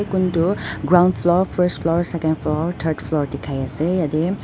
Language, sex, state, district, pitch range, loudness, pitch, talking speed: Nagamese, female, Nagaland, Dimapur, 155-180 Hz, -20 LUFS, 165 Hz, 150 wpm